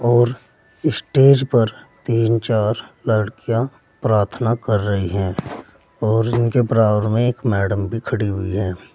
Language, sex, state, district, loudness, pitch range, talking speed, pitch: Hindi, male, Uttar Pradesh, Saharanpur, -19 LUFS, 105-120 Hz, 140 wpm, 115 Hz